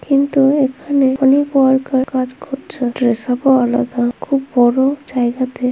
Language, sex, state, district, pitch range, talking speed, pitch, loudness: Bengali, female, West Bengal, Kolkata, 250-275 Hz, 135 wpm, 265 Hz, -15 LUFS